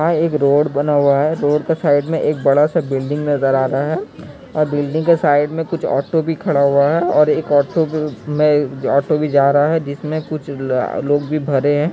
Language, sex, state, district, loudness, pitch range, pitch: Hindi, male, Bihar, Kishanganj, -16 LUFS, 140-155 Hz, 145 Hz